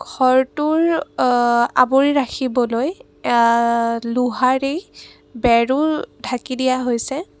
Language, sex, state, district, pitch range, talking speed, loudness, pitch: Assamese, female, Assam, Kamrup Metropolitan, 240-280 Hz, 80 wpm, -18 LUFS, 255 Hz